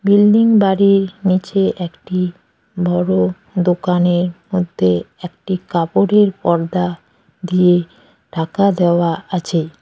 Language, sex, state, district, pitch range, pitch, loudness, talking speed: Bengali, female, West Bengal, Cooch Behar, 175-195 Hz, 180 Hz, -16 LUFS, 85 wpm